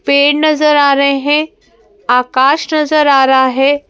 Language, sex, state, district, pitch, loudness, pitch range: Hindi, female, Madhya Pradesh, Bhopal, 280 Hz, -11 LUFS, 265-300 Hz